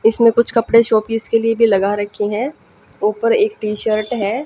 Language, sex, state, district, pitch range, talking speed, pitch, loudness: Hindi, female, Haryana, Jhajjar, 210-230 Hz, 215 wpm, 225 Hz, -16 LUFS